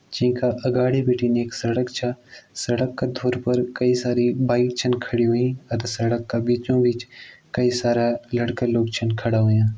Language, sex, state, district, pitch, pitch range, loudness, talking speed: Garhwali, male, Uttarakhand, Tehri Garhwal, 120 Hz, 120-125 Hz, -22 LUFS, 170 wpm